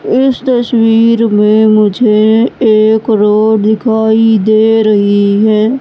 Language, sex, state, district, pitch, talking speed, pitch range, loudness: Hindi, female, Madhya Pradesh, Katni, 220 Hz, 105 wpm, 215-230 Hz, -9 LUFS